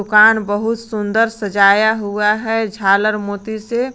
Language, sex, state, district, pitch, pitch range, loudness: Hindi, female, Jharkhand, Garhwa, 215 Hz, 205-225 Hz, -15 LUFS